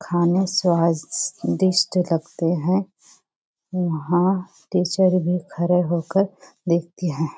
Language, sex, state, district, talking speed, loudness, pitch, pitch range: Hindi, female, Bihar, Kishanganj, 90 wpm, -21 LUFS, 180 Hz, 170-185 Hz